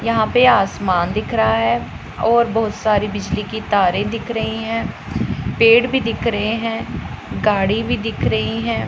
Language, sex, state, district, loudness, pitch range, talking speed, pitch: Hindi, female, Punjab, Pathankot, -18 LUFS, 180-230 Hz, 170 wpm, 215 Hz